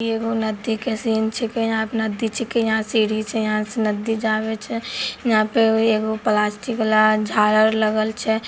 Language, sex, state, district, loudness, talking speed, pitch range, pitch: Maithili, female, Bihar, Begusarai, -20 LUFS, 175 wpm, 215-225 Hz, 220 Hz